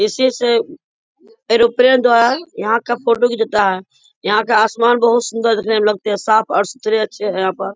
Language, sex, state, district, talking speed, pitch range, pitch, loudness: Hindi, female, Bihar, Bhagalpur, 195 wpm, 210-240 Hz, 230 Hz, -15 LUFS